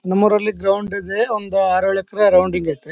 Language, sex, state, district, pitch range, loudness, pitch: Kannada, male, Karnataka, Bellary, 185-210 Hz, -17 LUFS, 195 Hz